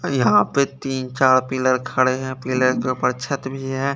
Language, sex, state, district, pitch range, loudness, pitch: Hindi, male, Chandigarh, Chandigarh, 130-135 Hz, -20 LUFS, 130 Hz